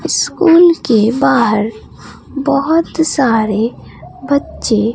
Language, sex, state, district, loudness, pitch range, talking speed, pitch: Hindi, female, Bihar, Katihar, -13 LUFS, 225-310 Hz, 75 wpm, 270 Hz